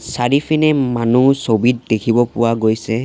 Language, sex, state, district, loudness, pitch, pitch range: Assamese, male, Assam, Sonitpur, -15 LUFS, 120 Hz, 115-135 Hz